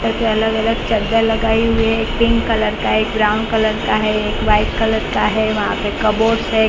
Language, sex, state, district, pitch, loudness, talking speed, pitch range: Hindi, female, Maharashtra, Mumbai Suburban, 220 Hz, -16 LUFS, 235 wpm, 215-225 Hz